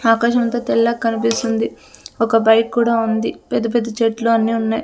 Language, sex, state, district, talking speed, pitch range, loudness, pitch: Telugu, female, Andhra Pradesh, Sri Satya Sai, 160 wpm, 225-235 Hz, -17 LUFS, 230 Hz